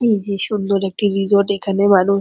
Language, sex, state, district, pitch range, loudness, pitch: Bengali, female, West Bengal, Purulia, 195-205 Hz, -17 LUFS, 200 Hz